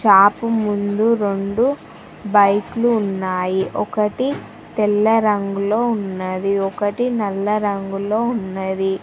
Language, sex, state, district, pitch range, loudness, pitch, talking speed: Telugu, female, Telangana, Mahabubabad, 195-225 Hz, -19 LUFS, 205 Hz, 85 wpm